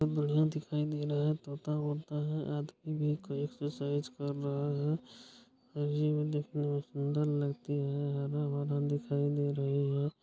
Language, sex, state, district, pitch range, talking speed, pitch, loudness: Hindi, female, Bihar, Bhagalpur, 145-150 Hz, 145 wpm, 145 Hz, -34 LUFS